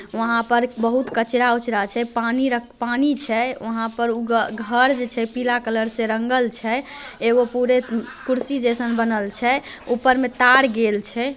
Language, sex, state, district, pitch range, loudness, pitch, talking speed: Maithili, male, Bihar, Samastipur, 230-250 Hz, -20 LUFS, 240 Hz, 160 wpm